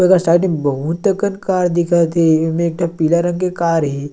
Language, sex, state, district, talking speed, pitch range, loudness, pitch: Chhattisgarhi, male, Chhattisgarh, Sarguja, 160 wpm, 165-180 Hz, -16 LUFS, 170 Hz